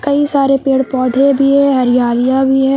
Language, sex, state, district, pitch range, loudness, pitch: Hindi, female, Jharkhand, Palamu, 260-275 Hz, -12 LUFS, 270 Hz